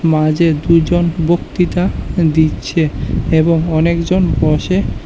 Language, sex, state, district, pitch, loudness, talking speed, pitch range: Bengali, male, Tripura, West Tripura, 165 Hz, -14 LUFS, 85 wpm, 160-170 Hz